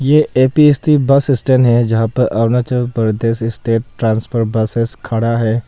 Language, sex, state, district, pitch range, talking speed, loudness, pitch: Hindi, male, Arunachal Pradesh, Papum Pare, 115-130 Hz, 150 wpm, -14 LUFS, 115 Hz